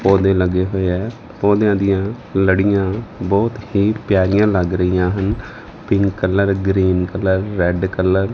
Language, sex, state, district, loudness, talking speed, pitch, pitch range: Punjabi, male, Punjab, Fazilka, -17 LUFS, 145 wpm, 95 Hz, 95-100 Hz